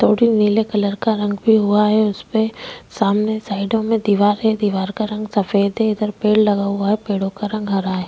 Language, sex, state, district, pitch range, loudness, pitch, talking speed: Hindi, female, Chhattisgarh, Korba, 200-215 Hz, -18 LUFS, 210 Hz, 200 wpm